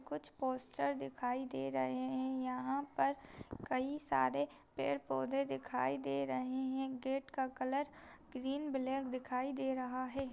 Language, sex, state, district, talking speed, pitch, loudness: Hindi, female, Chhattisgarh, Raigarh, 145 wpm, 255 Hz, -39 LUFS